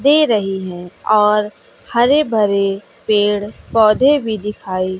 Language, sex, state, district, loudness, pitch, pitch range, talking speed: Hindi, female, Bihar, West Champaran, -16 LUFS, 210 Hz, 195-225 Hz, 120 wpm